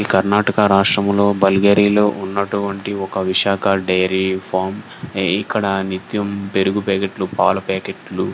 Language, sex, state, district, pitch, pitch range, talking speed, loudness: Telugu, male, Karnataka, Gulbarga, 100 Hz, 95-100 Hz, 130 wpm, -17 LUFS